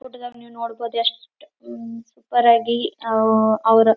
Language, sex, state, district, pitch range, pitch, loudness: Kannada, female, Karnataka, Belgaum, 225-235 Hz, 230 Hz, -19 LUFS